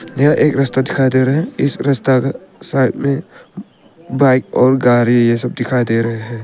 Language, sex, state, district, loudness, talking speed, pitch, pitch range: Hindi, male, Arunachal Pradesh, Papum Pare, -15 LUFS, 195 wpm, 130 Hz, 120-140 Hz